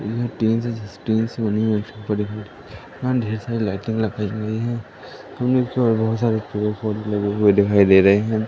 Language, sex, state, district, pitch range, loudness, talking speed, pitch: Hindi, male, Madhya Pradesh, Katni, 105-115 Hz, -20 LUFS, 115 wpm, 110 Hz